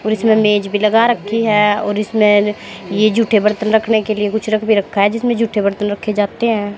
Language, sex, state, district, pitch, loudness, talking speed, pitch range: Hindi, female, Haryana, Jhajjar, 215 Hz, -15 LUFS, 230 wpm, 205-220 Hz